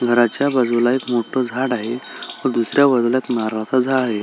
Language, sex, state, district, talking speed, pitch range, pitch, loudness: Marathi, male, Maharashtra, Solapur, 185 wpm, 120-130 Hz, 125 Hz, -18 LUFS